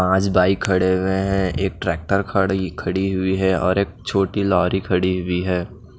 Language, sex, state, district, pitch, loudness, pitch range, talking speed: Hindi, male, Odisha, Nuapada, 95 Hz, -20 LUFS, 90-95 Hz, 180 wpm